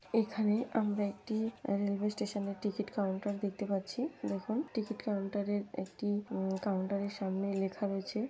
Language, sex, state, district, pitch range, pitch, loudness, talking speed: Bengali, female, West Bengal, North 24 Parganas, 195-220 Hz, 205 Hz, -36 LUFS, 160 wpm